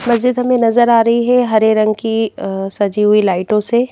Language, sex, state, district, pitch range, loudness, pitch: Hindi, female, Madhya Pradesh, Bhopal, 210-235 Hz, -14 LUFS, 225 Hz